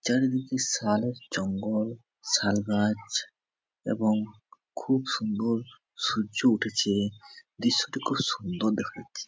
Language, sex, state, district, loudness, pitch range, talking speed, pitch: Bengali, male, West Bengal, Jhargram, -28 LUFS, 105-125 Hz, 95 wpm, 110 Hz